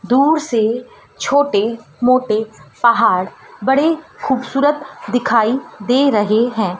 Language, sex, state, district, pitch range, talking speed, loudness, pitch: Hindi, female, Madhya Pradesh, Dhar, 220-270 Hz, 95 wpm, -16 LUFS, 240 Hz